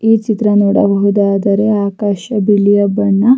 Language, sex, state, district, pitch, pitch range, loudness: Kannada, female, Karnataka, Raichur, 205 Hz, 200-210 Hz, -12 LUFS